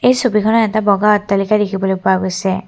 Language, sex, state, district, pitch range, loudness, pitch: Assamese, female, Assam, Kamrup Metropolitan, 190-215 Hz, -15 LUFS, 205 Hz